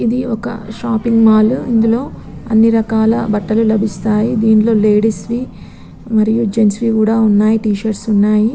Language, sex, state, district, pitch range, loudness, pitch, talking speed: Telugu, female, Telangana, Nalgonda, 215-230 Hz, -14 LUFS, 220 Hz, 145 wpm